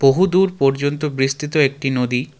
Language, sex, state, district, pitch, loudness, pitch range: Bengali, male, West Bengal, Darjeeling, 140 Hz, -18 LUFS, 135-150 Hz